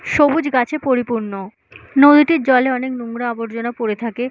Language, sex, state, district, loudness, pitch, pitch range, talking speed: Bengali, female, West Bengal, Purulia, -16 LUFS, 250 Hz, 230-280 Hz, 140 wpm